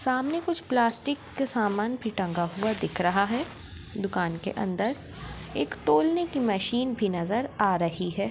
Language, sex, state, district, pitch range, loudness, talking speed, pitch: Hindi, female, Maharashtra, Sindhudurg, 190-255 Hz, -27 LUFS, 165 wpm, 210 Hz